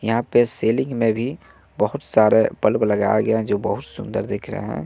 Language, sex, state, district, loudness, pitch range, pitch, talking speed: Hindi, male, Bihar, West Champaran, -20 LUFS, 110-120 Hz, 115 Hz, 210 wpm